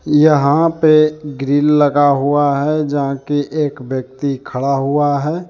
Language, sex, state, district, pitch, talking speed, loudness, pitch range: Hindi, male, Jharkhand, Deoghar, 145 Hz, 140 wpm, -15 LUFS, 140-150 Hz